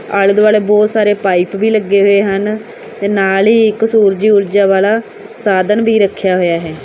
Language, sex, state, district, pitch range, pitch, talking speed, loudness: Punjabi, female, Punjab, Kapurthala, 195-215 Hz, 205 Hz, 185 wpm, -12 LUFS